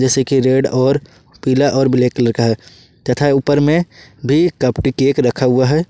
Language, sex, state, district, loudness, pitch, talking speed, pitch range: Hindi, male, Jharkhand, Ranchi, -15 LUFS, 135 Hz, 185 wpm, 125-145 Hz